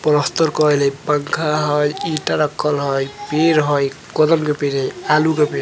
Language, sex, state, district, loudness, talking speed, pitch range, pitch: Bajjika, male, Bihar, Vaishali, -17 LUFS, 190 wpm, 145-155 Hz, 150 Hz